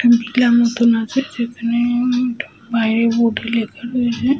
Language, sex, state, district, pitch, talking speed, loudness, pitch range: Bengali, female, Jharkhand, Sahebganj, 235 Hz, 150 wpm, -17 LUFS, 230-245 Hz